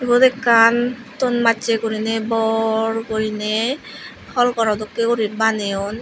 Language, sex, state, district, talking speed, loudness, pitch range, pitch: Chakma, female, Tripura, Unakoti, 120 wpm, -18 LUFS, 220-240 Hz, 225 Hz